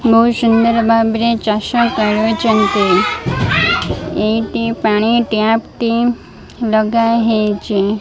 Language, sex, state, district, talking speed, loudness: Odia, female, Odisha, Malkangiri, 80 wpm, -14 LUFS